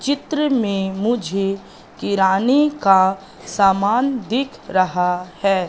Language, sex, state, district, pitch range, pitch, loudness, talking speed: Hindi, female, Madhya Pradesh, Katni, 190-255 Hz, 195 Hz, -18 LUFS, 95 wpm